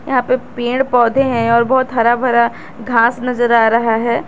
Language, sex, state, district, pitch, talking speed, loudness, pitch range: Hindi, female, Jharkhand, Garhwa, 240 Hz, 195 wpm, -14 LUFS, 235-255 Hz